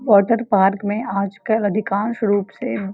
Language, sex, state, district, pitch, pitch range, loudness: Hindi, female, Uttar Pradesh, Varanasi, 205 Hz, 200-220 Hz, -19 LUFS